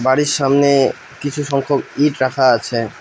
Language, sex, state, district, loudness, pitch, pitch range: Bengali, male, West Bengal, Alipurduar, -16 LUFS, 140 Hz, 130-145 Hz